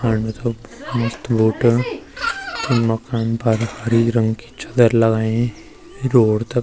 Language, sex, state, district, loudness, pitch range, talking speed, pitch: Garhwali, male, Uttarakhand, Uttarkashi, -19 LUFS, 110-120 Hz, 125 wpm, 115 Hz